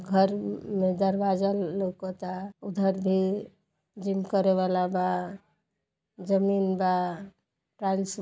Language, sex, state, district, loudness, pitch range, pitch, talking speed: Bhojpuri, female, Uttar Pradesh, Gorakhpur, -28 LUFS, 185-195 Hz, 190 Hz, 100 wpm